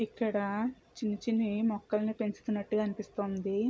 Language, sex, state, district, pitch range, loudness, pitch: Telugu, female, Andhra Pradesh, Chittoor, 205-225 Hz, -33 LUFS, 215 Hz